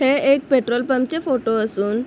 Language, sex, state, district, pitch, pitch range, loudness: Marathi, female, Maharashtra, Chandrapur, 255 Hz, 225-275 Hz, -19 LUFS